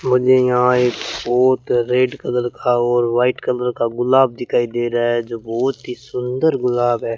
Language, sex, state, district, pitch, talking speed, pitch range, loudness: Hindi, male, Rajasthan, Bikaner, 125 Hz, 185 wpm, 120-125 Hz, -18 LUFS